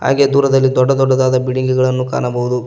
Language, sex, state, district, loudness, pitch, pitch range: Kannada, male, Karnataka, Koppal, -14 LUFS, 130 Hz, 130-135 Hz